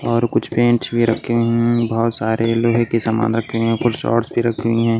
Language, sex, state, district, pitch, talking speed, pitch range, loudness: Hindi, male, Maharashtra, Washim, 115 Hz, 250 wpm, 115-120 Hz, -18 LUFS